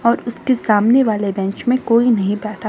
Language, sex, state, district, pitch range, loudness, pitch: Hindi, male, Himachal Pradesh, Shimla, 210-240 Hz, -16 LUFS, 230 Hz